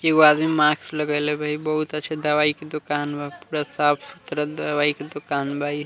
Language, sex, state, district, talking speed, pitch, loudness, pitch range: Bhojpuri, male, Bihar, Muzaffarpur, 245 wpm, 150 Hz, -22 LUFS, 145-150 Hz